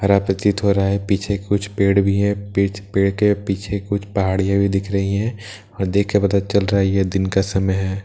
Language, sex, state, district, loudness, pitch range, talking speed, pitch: Hindi, male, Bihar, Katihar, -19 LUFS, 95-100 Hz, 245 wpm, 100 Hz